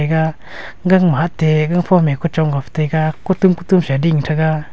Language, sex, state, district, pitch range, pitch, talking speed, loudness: Wancho, male, Arunachal Pradesh, Longding, 155-175 Hz, 160 Hz, 165 wpm, -16 LUFS